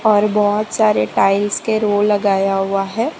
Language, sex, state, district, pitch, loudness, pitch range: Hindi, female, Gujarat, Valsad, 205 Hz, -16 LUFS, 195-215 Hz